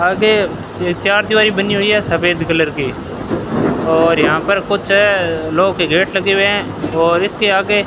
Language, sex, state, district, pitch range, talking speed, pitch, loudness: Hindi, male, Rajasthan, Bikaner, 165-200 Hz, 185 wpm, 195 Hz, -14 LUFS